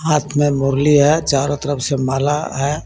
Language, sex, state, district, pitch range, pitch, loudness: Hindi, male, Jharkhand, Garhwa, 135-150 Hz, 145 Hz, -16 LUFS